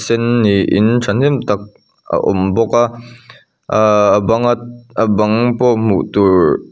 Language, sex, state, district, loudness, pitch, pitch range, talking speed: Mizo, male, Mizoram, Aizawl, -14 LUFS, 115 Hz, 105-120 Hz, 160 wpm